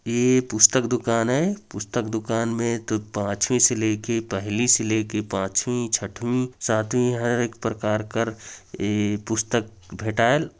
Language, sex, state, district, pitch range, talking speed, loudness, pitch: Chhattisgarhi, male, Chhattisgarh, Jashpur, 110-120 Hz, 135 wpm, -23 LUFS, 115 Hz